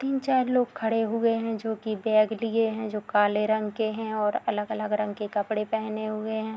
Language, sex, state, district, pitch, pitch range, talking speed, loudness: Hindi, female, Bihar, Madhepura, 220 Hz, 215-225 Hz, 220 wpm, -27 LUFS